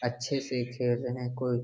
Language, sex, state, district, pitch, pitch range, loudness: Hindi, male, Bihar, Jamui, 125 Hz, 120-125 Hz, -32 LUFS